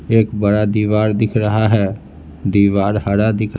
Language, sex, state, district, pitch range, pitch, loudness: Hindi, male, Bihar, Patna, 100-110 Hz, 105 Hz, -16 LUFS